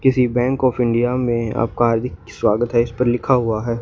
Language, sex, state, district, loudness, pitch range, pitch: Hindi, male, Haryana, Rohtak, -18 LUFS, 115-125 Hz, 120 Hz